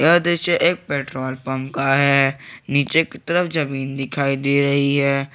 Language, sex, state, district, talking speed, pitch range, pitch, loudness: Hindi, male, Jharkhand, Garhwa, 170 wpm, 135-155 Hz, 140 Hz, -19 LUFS